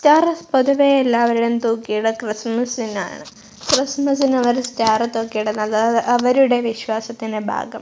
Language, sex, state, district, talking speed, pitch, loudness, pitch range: Malayalam, female, Kerala, Kozhikode, 105 wpm, 235 Hz, -18 LUFS, 225-265 Hz